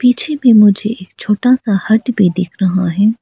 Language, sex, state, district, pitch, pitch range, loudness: Hindi, female, Arunachal Pradesh, Lower Dibang Valley, 210 Hz, 190-235 Hz, -13 LUFS